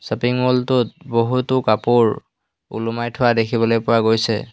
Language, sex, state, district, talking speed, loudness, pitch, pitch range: Assamese, male, Assam, Hailakandi, 130 wpm, -18 LUFS, 120 Hz, 115-125 Hz